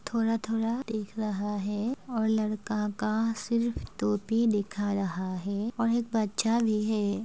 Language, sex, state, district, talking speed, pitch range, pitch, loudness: Hindi, female, Uttar Pradesh, Budaun, 140 wpm, 205-230 Hz, 215 Hz, -29 LUFS